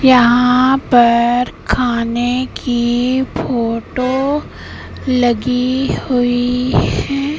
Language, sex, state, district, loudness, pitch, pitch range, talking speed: Hindi, female, Madhya Pradesh, Katni, -15 LUFS, 250 Hz, 240-260 Hz, 65 wpm